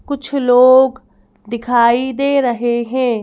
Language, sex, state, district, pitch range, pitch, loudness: Hindi, female, Madhya Pradesh, Bhopal, 235-265 Hz, 250 Hz, -14 LUFS